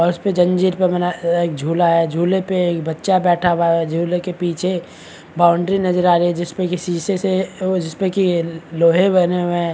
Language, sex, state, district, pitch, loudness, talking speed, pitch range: Hindi, male, Chhattisgarh, Bastar, 175 Hz, -17 LUFS, 230 wpm, 170-185 Hz